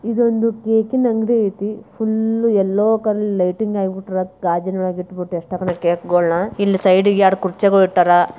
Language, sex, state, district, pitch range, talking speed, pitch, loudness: Kannada, female, Karnataka, Bijapur, 180-220 Hz, 105 wpm, 195 Hz, -17 LUFS